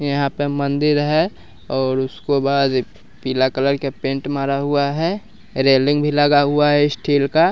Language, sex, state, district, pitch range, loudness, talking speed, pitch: Hindi, male, Bihar, West Champaran, 135-145 Hz, -18 LUFS, 165 wpm, 140 Hz